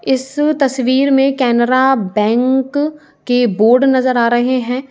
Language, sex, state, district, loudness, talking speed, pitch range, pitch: Hindi, female, Uttar Pradesh, Jyotiba Phule Nagar, -14 LUFS, 135 wpm, 245-270 Hz, 260 Hz